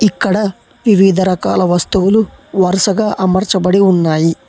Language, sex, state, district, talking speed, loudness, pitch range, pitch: Telugu, male, Telangana, Hyderabad, 95 wpm, -13 LUFS, 185-205 Hz, 190 Hz